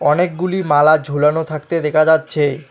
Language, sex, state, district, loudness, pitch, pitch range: Bengali, male, West Bengal, Alipurduar, -15 LUFS, 155 Hz, 150-160 Hz